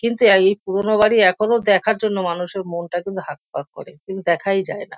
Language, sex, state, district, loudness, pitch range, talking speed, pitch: Bengali, female, West Bengal, Kolkata, -18 LUFS, 180-215 Hz, 195 wpm, 195 Hz